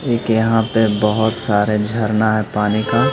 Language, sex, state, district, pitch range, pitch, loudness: Hindi, male, Bihar, Katihar, 105-115 Hz, 110 Hz, -17 LUFS